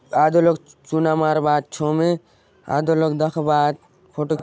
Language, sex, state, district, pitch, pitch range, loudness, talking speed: Halbi, male, Chhattisgarh, Bastar, 155 Hz, 150-160 Hz, -20 LUFS, 160 wpm